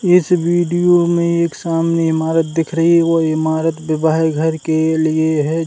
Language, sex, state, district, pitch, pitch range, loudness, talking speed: Hindi, male, Uttar Pradesh, Hamirpur, 165 Hz, 160-170 Hz, -15 LUFS, 180 wpm